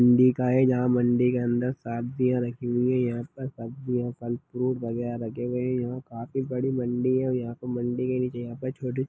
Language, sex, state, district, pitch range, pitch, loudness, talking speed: Hindi, male, Chhattisgarh, Kabirdham, 120-125 Hz, 125 Hz, -27 LUFS, 225 wpm